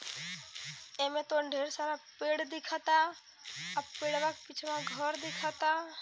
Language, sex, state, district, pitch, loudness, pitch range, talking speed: Hindi, female, Uttar Pradesh, Deoria, 305 Hz, -35 LUFS, 300-315 Hz, 120 wpm